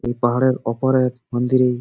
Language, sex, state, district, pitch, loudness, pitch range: Bengali, male, West Bengal, Jalpaiguri, 125 Hz, -19 LUFS, 120-130 Hz